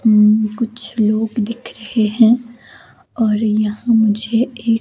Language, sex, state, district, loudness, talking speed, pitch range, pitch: Hindi, female, Himachal Pradesh, Shimla, -16 LUFS, 125 wpm, 215-235 Hz, 220 Hz